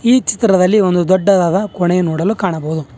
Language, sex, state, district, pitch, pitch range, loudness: Kannada, male, Karnataka, Bangalore, 185 Hz, 175-205 Hz, -14 LUFS